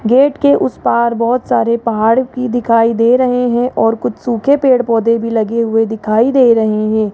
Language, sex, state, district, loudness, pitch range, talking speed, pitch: Hindi, male, Rajasthan, Jaipur, -13 LUFS, 225-250 Hz, 185 wpm, 230 Hz